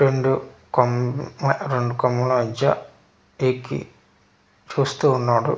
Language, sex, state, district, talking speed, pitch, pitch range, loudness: Telugu, male, Andhra Pradesh, Manyam, 75 wpm, 125 Hz, 120-135 Hz, -22 LUFS